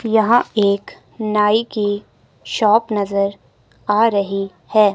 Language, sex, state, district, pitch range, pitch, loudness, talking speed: Hindi, female, Himachal Pradesh, Shimla, 195-215 Hz, 205 Hz, -18 LUFS, 110 wpm